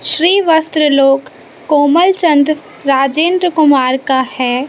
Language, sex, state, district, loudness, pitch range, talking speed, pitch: Hindi, female, Madhya Pradesh, Katni, -12 LUFS, 270-325 Hz, 100 wpm, 300 Hz